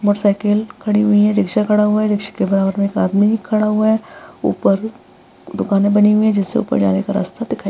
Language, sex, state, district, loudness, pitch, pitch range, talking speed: Hindi, female, Bihar, Vaishali, -16 LUFS, 210 Hz, 200-215 Hz, 240 wpm